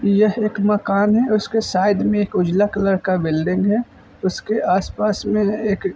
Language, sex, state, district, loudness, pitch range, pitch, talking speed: Hindi, male, Uttar Pradesh, Budaun, -19 LUFS, 190-215 Hz, 205 Hz, 180 wpm